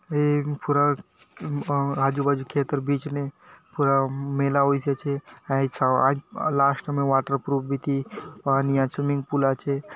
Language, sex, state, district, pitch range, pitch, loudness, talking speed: Halbi, male, Chhattisgarh, Bastar, 135-145 Hz, 140 Hz, -24 LUFS, 140 wpm